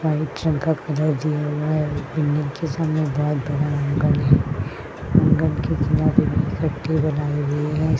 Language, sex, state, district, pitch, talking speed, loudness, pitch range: Hindi, female, Uttar Pradesh, Jyotiba Phule Nagar, 150 Hz, 105 wpm, -21 LUFS, 145-155 Hz